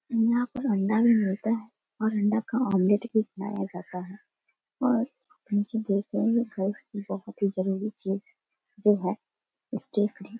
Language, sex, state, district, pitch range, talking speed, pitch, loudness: Hindi, female, Bihar, Darbhanga, 195-230 Hz, 90 wpm, 210 Hz, -28 LUFS